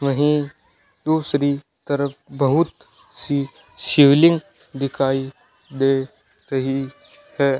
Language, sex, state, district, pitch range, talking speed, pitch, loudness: Hindi, male, Rajasthan, Bikaner, 135-150 Hz, 80 wpm, 140 Hz, -20 LUFS